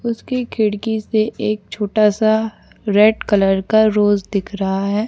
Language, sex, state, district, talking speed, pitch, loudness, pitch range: Hindi, female, Chhattisgarh, Bastar, 155 wpm, 215 Hz, -17 LUFS, 205-220 Hz